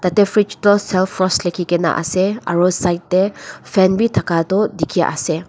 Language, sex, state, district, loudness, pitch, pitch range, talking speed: Nagamese, female, Nagaland, Dimapur, -17 LUFS, 185 Hz, 175-200 Hz, 175 wpm